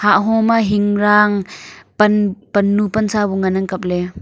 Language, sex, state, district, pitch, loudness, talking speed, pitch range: Wancho, female, Arunachal Pradesh, Longding, 205 Hz, -16 LUFS, 140 wpm, 190-210 Hz